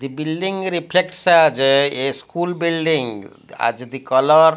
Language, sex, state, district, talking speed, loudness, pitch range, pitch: English, male, Odisha, Malkangiri, 145 wpm, -18 LUFS, 135-170 Hz, 155 Hz